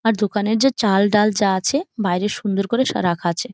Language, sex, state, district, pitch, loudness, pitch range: Bengali, female, West Bengal, Jhargram, 210 Hz, -19 LUFS, 195-225 Hz